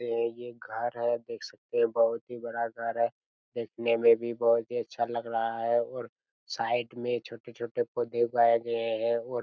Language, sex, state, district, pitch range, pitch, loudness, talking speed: Hindi, male, Chhattisgarh, Raigarh, 115-120 Hz, 120 Hz, -30 LUFS, 185 wpm